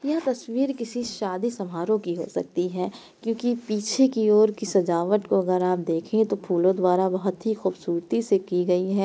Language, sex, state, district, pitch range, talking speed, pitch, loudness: Hindi, female, Uttar Pradesh, Etah, 180-230 Hz, 190 wpm, 200 Hz, -24 LUFS